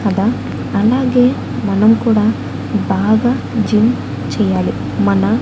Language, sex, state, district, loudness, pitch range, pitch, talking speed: Telugu, female, Andhra Pradesh, Annamaya, -15 LUFS, 190-230 Hz, 215 Hz, 90 wpm